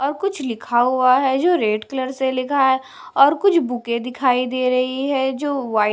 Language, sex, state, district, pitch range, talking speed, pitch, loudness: Hindi, female, Punjab, Kapurthala, 250-275 Hz, 210 wpm, 260 Hz, -19 LUFS